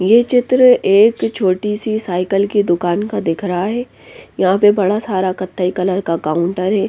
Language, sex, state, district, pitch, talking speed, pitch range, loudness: Hindi, female, Bihar, West Champaran, 195 Hz, 185 wpm, 185-215 Hz, -15 LUFS